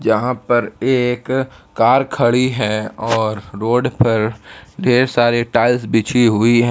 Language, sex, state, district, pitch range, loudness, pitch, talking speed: Hindi, male, Jharkhand, Palamu, 110-125 Hz, -16 LUFS, 120 Hz, 135 wpm